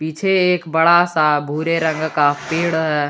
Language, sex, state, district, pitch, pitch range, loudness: Hindi, male, Jharkhand, Garhwa, 160 Hz, 150-170 Hz, -17 LUFS